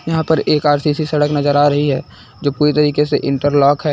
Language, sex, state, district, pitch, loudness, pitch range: Hindi, male, Uttar Pradesh, Lucknow, 145 Hz, -15 LUFS, 145-150 Hz